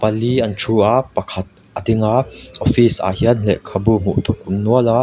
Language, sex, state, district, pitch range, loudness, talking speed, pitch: Mizo, male, Mizoram, Aizawl, 100-120 Hz, -17 LUFS, 200 wpm, 110 Hz